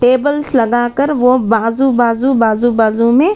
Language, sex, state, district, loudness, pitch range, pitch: Hindi, female, Karnataka, Bangalore, -13 LUFS, 230-270 Hz, 240 Hz